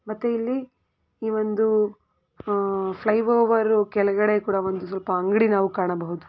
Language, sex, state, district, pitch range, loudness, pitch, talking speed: Kannada, female, Karnataka, Belgaum, 195-220 Hz, -23 LUFS, 210 Hz, 115 wpm